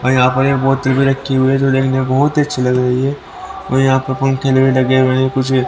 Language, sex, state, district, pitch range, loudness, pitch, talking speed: Hindi, male, Haryana, Rohtak, 130-135 Hz, -14 LUFS, 130 Hz, 295 wpm